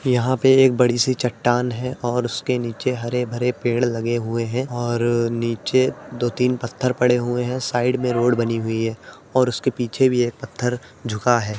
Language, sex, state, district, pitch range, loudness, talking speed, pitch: Hindi, male, Uttar Pradesh, Etah, 120-125 Hz, -21 LUFS, 195 wpm, 120 Hz